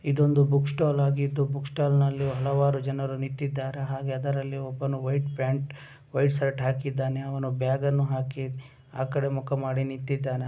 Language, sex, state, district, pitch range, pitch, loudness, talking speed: Kannada, male, Karnataka, Raichur, 135-140 Hz, 135 Hz, -27 LUFS, 155 wpm